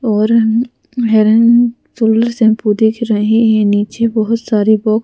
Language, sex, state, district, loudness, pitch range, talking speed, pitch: Hindi, female, Madhya Pradesh, Bhopal, -12 LUFS, 215-230 Hz, 130 wpm, 220 Hz